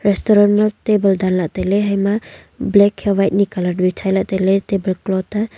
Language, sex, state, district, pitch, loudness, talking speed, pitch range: Wancho, female, Arunachal Pradesh, Longding, 195 Hz, -16 LUFS, 160 wpm, 190-205 Hz